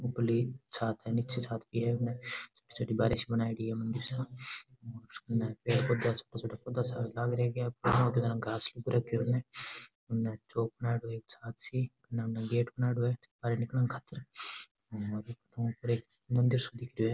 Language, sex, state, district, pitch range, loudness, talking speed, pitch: Rajasthani, male, Rajasthan, Nagaur, 115-125 Hz, -34 LUFS, 185 wpm, 120 Hz